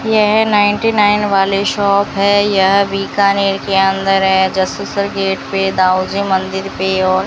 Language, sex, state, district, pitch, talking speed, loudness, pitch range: Hindi, female, Rajasthan, Bikaner, 195 Hz, 155 wpm, -14 LUFS, 190-205 Hz